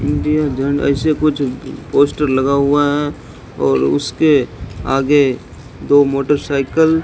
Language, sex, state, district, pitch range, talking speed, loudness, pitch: Hindi, male, Rajasthan, Bikaner, 135-150 Hz, 120 wpm, -15 LUFS, 140 Hz